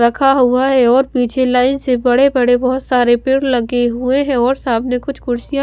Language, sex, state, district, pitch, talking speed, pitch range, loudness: Hindi, female, Bihar, Kaimur, 255 Hz, 200 wpm, 245-265 Hz, -14 LUFS